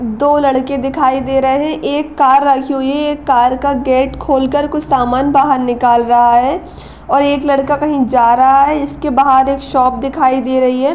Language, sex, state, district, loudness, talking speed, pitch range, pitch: Hindi, female, Uttar Pradesh, Gorakhpur, -12 LUFS, 205 wpm, 260-285 Hz, 270 Hz